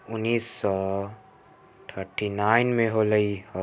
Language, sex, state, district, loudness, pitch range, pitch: Maithili, male, Bihar, Samastipur, -25 LUFS, 100-115 Hz, 105 Hz